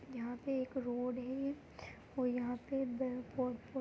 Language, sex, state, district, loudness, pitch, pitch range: Hindi, female, Chhattisgarh, Kabirdham, -40 LUFS, 255 Hz, 245-265 Hz